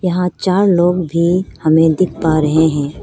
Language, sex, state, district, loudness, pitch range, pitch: Hindi, female, Arunachal Pradesh, Lower Dibang Valley, -14 LUFS, 160-180 Hz, 170 Hz